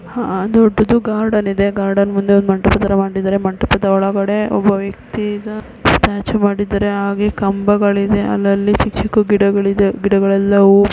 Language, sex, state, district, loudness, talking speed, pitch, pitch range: Kannada, female, Karnataka, Mysore, -15 LUFS, 135 wpm, 200 Hz, 195-205 Hz